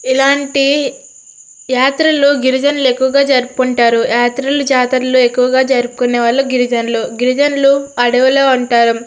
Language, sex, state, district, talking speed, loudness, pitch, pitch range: Telugu, female, Andhra Pradesh, Srikakulam, 95 wpm, -12 LUFS, 260 Hz, 245-275 Hz